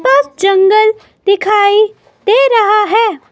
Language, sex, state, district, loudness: Hindi, female, Himachal Pradesh, Shimla, -11 LUFS